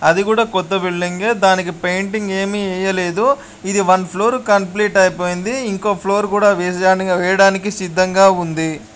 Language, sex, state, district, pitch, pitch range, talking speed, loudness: Telugu, male, Andhra Pradesh, Guntur, 190 Hz, 185-205 Hz, 140 wpm, -16 LUFS